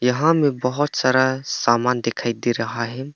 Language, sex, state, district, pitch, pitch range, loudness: Hindi, male, Arunachal Pradesh, Papum Pare, 125 Hz, 120-135 Hz, -20 LUFS